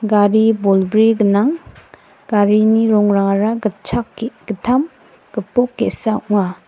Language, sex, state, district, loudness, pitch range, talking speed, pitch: Garo, female, Meghalaya, West Garo Hills, -15 LUFS, 205-230 Hz, 90 wpm, 215 Hz